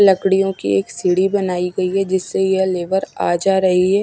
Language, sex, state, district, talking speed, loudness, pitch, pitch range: Hindi, female, Odisha, Malkangiri, 210 wpm, -17 LUFS, 190 Hz, 180-195 Hz